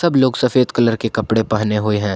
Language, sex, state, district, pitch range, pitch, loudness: Hindi, male, Jharkhand, Ranchi, 110-125 Hz, 115 Hz, -17 LUFS